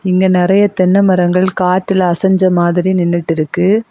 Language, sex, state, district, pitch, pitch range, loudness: Tamil, female, Tamil Nadu, Kanyakumari, 185 Hz, 175-190 Hz, -12 LUFS